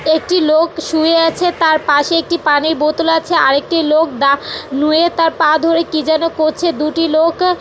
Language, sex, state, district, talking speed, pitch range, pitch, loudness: Bengali, female, West Bengal, Jhargram, 165 wpm, 310-330 Hz, 320 Hz, -13 LUFS